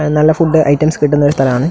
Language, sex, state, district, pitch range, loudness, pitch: Malayalam, male, Kerala, Kasaragod, 145-155 Hz, -12 LUFS, 150 Hz